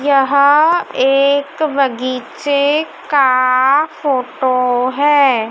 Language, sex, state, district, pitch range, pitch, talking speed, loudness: Hindi, female, Madhya Pradesh, Dhar, 255-290 Hz, 275 Hz, 65 wpm, -14 LUFS